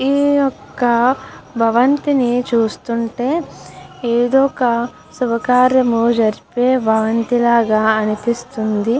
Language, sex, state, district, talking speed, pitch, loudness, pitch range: Telugu, female, Andhra Pradesh, Guntur, 75 wpm, 240 Hz, -16 LUFS, 230-255 Hz